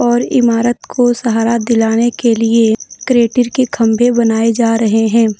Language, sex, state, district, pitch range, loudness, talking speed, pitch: Hindi, female, Jharkhand, Deoghar, 225-240 Hz, -13 LUFS, 145 wpm, 235 Hz